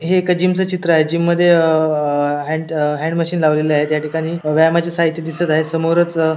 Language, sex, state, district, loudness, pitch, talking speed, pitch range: Marathi, male, Maharashtra, Sindhudurg, -16 LUFS, 160 Hz, 205 wpm, 155-170 Hz